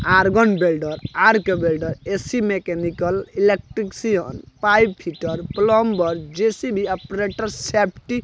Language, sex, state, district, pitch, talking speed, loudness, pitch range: Bhojpuri, male, Bihar, Gopalganj, 190 Hz, 100 wpm, -20 LUFS, 170-210 Hz